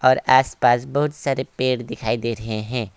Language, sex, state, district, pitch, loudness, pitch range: Hindi, male, West Bengal, Alipurduar, 125 Hz, -21 LUFS, 115-130 Hz